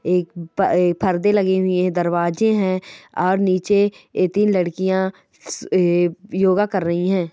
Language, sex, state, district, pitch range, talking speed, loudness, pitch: Hindi, female, Chhattisgarh, Balrampur, 175-195 Hz, 140 wpm, -19 LUFS, 185 Hz